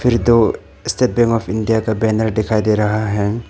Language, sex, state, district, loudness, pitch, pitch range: Hindi, male, Arunachal Pradesh, Papum Pare, -16 LUFS, 110 Hz, 110-115 Hz